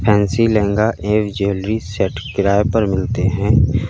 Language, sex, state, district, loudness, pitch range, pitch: Hindi, male, Uttar Pradesh, Lalitpur, -17 LUFS, 100-110 Hz, 105 Hz